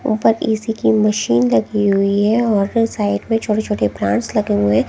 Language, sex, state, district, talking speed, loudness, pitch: Hindi, female, Haryana, Jhajjar, 195 wpm, -17 LUFS, 205 Hz